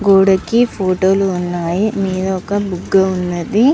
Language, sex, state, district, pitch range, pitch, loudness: Telugu, male, Andhra Pradesh, Visakhapatnam, 185-200 Hz, 190 Hz, -15 LUFS